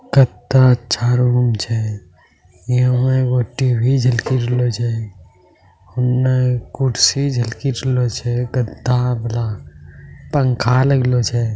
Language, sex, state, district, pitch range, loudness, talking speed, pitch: Angika, male, Bihar, Bhagalpur, 115-130 Hz, -17 LUFS, 115 wpm, 125 Hz